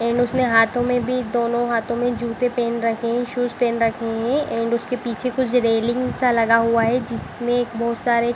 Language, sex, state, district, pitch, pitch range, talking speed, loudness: Hindi, female, Chhattisgarh, Bilaspur, 235 Hz, 230-245 Hz, 210 wpm, -20 LUFS